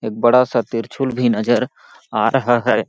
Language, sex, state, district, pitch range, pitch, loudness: Hindi, male, Chhattisgarh, Balrampur, 115-125 Hz, 120 Hz, -17 LUFS